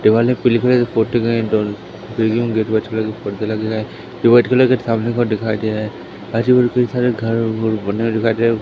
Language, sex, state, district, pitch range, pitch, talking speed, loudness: Hindi, male, Madhya Pradesh, Katni, 110-120 Hz, 115 Hz, 190 wpm, -17 LUFS